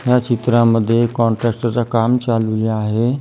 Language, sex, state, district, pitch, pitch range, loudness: Marathi, female, Maharashtra, Gondia, 115 Hz, 115-120 Hz, -16 LUFS